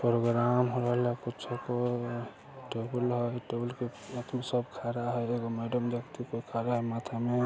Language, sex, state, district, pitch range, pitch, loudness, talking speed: Maithili, male, Bihar, Samastipur, 120-125 Hz, 120 Hz, -33 LUFS, 160 wpm